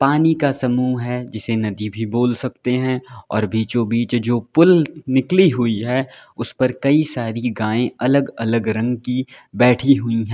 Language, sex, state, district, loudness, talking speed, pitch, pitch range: Hindi, male, Uttar Pradesh, Lalitpur, -18 LUFS, 175 wpm, 125 Hz, 115-130 Hz